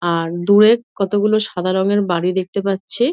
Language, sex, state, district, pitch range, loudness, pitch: Bengali, female, West Bengal, Dakshin Dinajpur, 180-215 Hz, -17 LUFS, 195 Hz